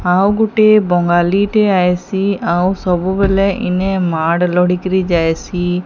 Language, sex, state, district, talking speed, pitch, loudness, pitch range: Odia, female, Odisha, Sambalpur, 100 wpm, 185 Hz, -14 LUFS, 175-195 Hz